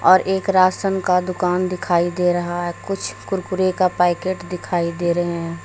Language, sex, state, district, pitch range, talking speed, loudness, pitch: Hindi, female, Jharkhand, Deoghar, 175-185 Hz, 180 wpm, -20 LUFS, 180 Hz